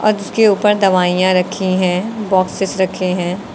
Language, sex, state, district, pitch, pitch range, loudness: Hindi, female, Uttar Pradesh, Lucknow, 190 Hz, 185-205 Hz, -15 LUFS